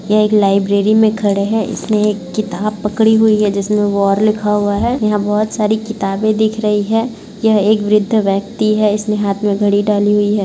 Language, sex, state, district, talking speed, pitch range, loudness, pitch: Hindi, female, Bihar, Kishanganj, 200 wpm, 205-215 Hz, -14 LUFS, 210 Hz